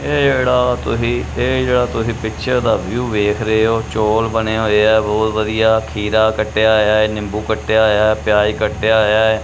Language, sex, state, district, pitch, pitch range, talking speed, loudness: Punjabi, male, Punjab, Kapurthala, 110 Hz, 110-115 Hz, 190 wpm, -15 LUFS